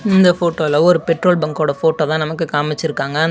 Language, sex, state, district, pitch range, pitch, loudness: Tamil, male, Tamil Nadu, Namakkal, 150-170 Hz, 160 Hz, -16 LUFS